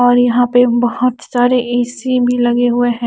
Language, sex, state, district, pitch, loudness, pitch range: Hindi, female, Chandigarh, Chandigarh, 245 Hz, -14 LUFS, 240-245 Hz